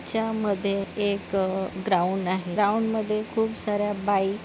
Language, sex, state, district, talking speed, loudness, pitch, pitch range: Marathi, female, Maharashtra, Nagpur, 120 wpm, -26 LUFS, 205 Hz, 190-215 Hz